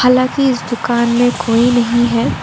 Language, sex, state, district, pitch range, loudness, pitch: Hindi, female, Arunachal Pradesh, Lower Dibang Valley, 235-245 Hz, -14 LUFS, 240 Hz